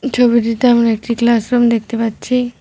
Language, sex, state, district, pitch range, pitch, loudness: Bengali, female, West Bengal, Cooch Behar, 230-245 Hz, 235 Hz, -14 LUFS